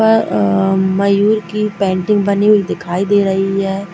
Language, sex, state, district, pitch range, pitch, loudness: Hindi, female, Bihar, East Champaran, 190-210 Hz, 200 Hz, -14 LUFS